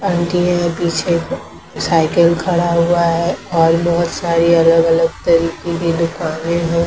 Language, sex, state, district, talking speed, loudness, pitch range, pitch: Hindi, female, Maharashtra, Mumbai Suburban, 130 wpm, -15 LUFS, 165-170 Hz, 170 Hz